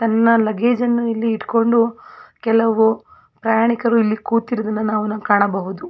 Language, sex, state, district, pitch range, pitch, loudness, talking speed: Kannada, female, Karnataka, Belgaum, 215-230 Hz, 225 Hz, -18 LUFS, 110 wpm